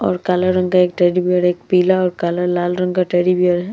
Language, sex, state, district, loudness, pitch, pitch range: Hindi, female, Bihar, Vaishali, -16 LUFS, 180 Hz, 175-180 Hz